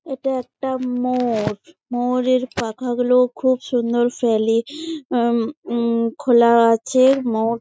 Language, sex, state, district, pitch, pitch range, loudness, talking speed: Bengali, female, West Bengal, Jalpaiguri, 245 Hz, 235-260 Hz, -19 LUFS, 120 wpm